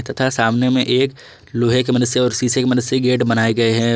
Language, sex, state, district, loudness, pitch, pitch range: Hindi, male, Jharkhand, Ranchi, -17 LUFS, 125 Hz, 115-125 Hz